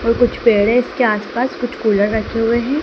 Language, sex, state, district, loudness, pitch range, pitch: Hindi, male, Madhya Pradesh, Dhar, -16 LUFS, 220-245 Hz, 230 Hz